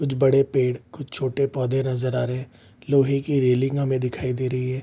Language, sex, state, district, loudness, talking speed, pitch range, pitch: Hindi, male, Bihar, Vaishali, -23 LUFS, 225 wpm, 125-135 Hz, 130 Hz